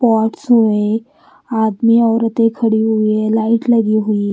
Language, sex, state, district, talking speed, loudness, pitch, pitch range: Hindi, female, Bihar, Patna, 150 wpm, -14 LUFS, 225 Hz, 215-230 Hz